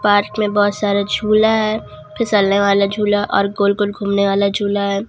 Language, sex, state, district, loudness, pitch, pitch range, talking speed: Hindi, female, Jharkhand, Ranchi, -16 LUFS, 205 Hz, 200-210 Hz, 175 wpm